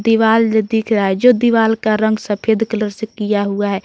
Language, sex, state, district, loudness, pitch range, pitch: Hindi, female, Jharkhand, Garhwa, -15 LUFS, 210-225 Hz, 220 Hz